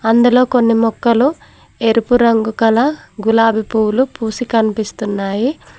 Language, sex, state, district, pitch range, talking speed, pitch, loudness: Telugu, female, Telangana, Mahabubabad, 220-245 Hz, 105 wpm, 225 Hz, -14 LUFS